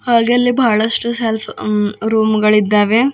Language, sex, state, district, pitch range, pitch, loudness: Kannada, female, Karnataka, Bidar, 215-235 Hz, 220 Hz, -14 LUFS